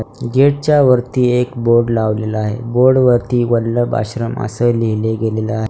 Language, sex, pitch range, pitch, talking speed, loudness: Marathi, male, 110-125 Hz, 120 Hz, 160 wpm, -15 LUFS